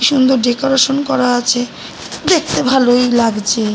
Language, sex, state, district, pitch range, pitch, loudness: Bengali, female, West Bengal, North 24 Parganas, 240-270 Hz, 245 Hz, -13 LUFS